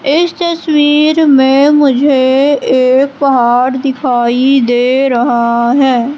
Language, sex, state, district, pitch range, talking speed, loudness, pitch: Hindi, female, Madhya Pradesh, Katni, 250-290 Hz, 95 wpm, -10 LUFS, 270 Hz